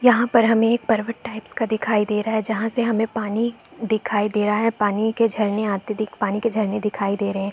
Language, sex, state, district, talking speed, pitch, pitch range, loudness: Hindi, female, Chhattisgarh, Bastar, 240 wpm, 220 Hz, 210-225 Hz, -21 LUFS